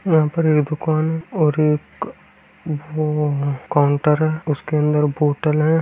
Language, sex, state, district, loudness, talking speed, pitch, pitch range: Hindi, male, Bihar, Darbhanga, -19 LUFS, 135 wpm, 150 Hz, 150-155 Hz